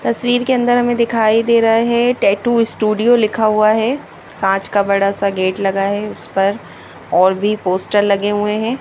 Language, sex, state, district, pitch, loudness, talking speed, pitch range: Hindi, male, Madhya Pradesh, Bhopal, 215 Hz, -15 LUFS, 190 wpm, 200-235 Hz